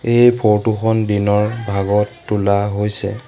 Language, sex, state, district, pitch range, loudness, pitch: Assamese, male, Assam, Sonitpur, 100-110 Hz, -16 LUFS, 105 Hz